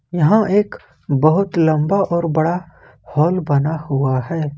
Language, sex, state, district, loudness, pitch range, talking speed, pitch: Hindi, male, Jharkhand, Ranchi, -17 LUFS, 150-175 Hz, 130 wpm, 160 Hz